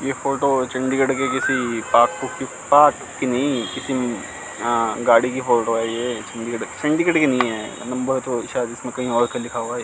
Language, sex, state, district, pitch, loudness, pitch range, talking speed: Hindi, male, Chandigarh, Chandigarh, 125 Hz, -20 LUFS, 120-135 Hz, 170 wpm